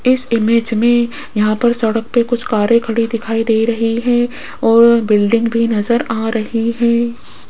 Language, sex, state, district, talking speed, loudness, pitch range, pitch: Hindi, female, Rajasthan, Jaipur, 170 wpm, -15 LUFS, 225-235 Hz, 230 Hz